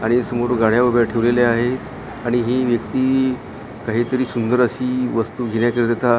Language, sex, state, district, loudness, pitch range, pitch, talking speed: Marathi, male, Maharashtra, Gondia, -19 LUFS, 115-125 Hz, 120 Hz, 135 wpm